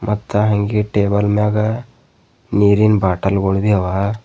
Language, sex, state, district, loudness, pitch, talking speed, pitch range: Kannada, male, Karnataka, Bidar, -16 LUFS, 105 Hz, 125 wpm, 100-105 Hz